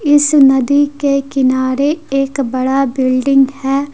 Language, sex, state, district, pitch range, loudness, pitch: Hindi, female, Jharkhand, Deoghar, 265-285 Hz, -13 LUFS, 275 Hz